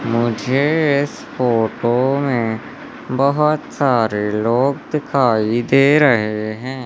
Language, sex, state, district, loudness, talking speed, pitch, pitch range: Hindi, male, Madhya Pradesh, Umaria, -17 LUFS, 95 wpm, 130 Hz, 115-140 Hz